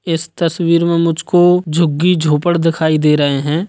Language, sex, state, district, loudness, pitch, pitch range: Hindi, male, Bihar, Sitamarhi, -14 LUFS, 165 Hz, 155-170 Hz